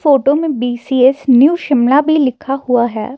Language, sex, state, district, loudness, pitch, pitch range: Hindi, female, Himachal Pradesh, Shimla, -13 LUFS, 270 Hz, 250-285 Hz